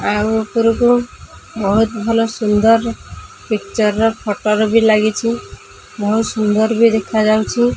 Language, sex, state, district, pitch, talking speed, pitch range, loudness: Odia, female, Odisha, Khordha, 220 Hz, 115 wpm, 215-230 Hz, -15 LUFS